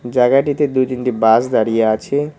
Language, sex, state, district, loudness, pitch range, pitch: Bengali, male, West Bengal, Cooch Behar, -15 LUFS, 115-140 Hz, 125 Hz